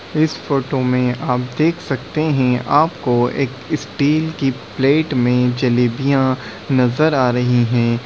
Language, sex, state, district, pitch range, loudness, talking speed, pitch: Hindi, male, Uttar Pradesh, Deoria, 125-145 Hz, -17 LUFS, 135 wpm, 130 Hz